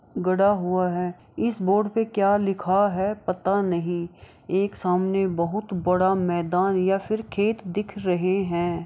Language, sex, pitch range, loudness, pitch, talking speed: Maithili, female, 180-200 Hz, -24 LUFS, 190 Hz, 150 wpm